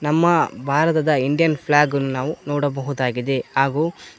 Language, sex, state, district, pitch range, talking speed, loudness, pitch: Kannada, male, Karnataka, Koppal, 135-155 Hz, 100 wpm, -20 LUFS, 145 Hz